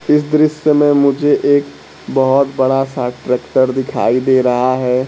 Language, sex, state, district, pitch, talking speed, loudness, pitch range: Hindi, male, Bihar, Kaimur, 135 Hz, 155 wpm, -14 LUFS, 130-145 Hz